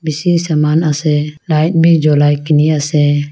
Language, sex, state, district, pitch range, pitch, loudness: Nagamese, female, Nagaland, Kohima, 150-160 Hz, 155 Hz, -12 LUFS